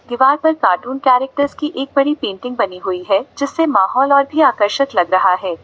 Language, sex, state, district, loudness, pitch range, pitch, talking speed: Hindi, female, Uttar Pradesh, Lalitpur, -16 LUFS, 190-280 Hz, 260 Hz, 200 wpm